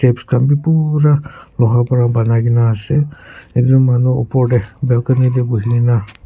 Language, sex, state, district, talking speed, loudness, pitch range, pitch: Nagamese, male, Nagaland, Kohima, 155 wpm, -14 LUFS, 120-130 Hz, 125 Hz